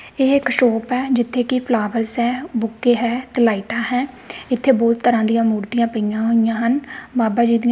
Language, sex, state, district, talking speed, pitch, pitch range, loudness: Punjabi, female, Punjab, Kapurthala, 185 wpm, 235 Hz, 230-250 Hz, -18 LUFS